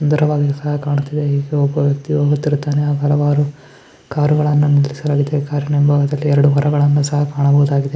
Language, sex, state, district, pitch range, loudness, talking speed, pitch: Kannada, male, Karnataka, Bijapur, 145-150 Hz, -16 LUFS, 130 wpm, 145 Hz